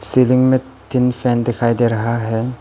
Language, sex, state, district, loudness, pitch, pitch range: Hindi, male, Arunachal Pradesh, Papum Pare, -17 LUFS, 120 Hz, 115-125 Hz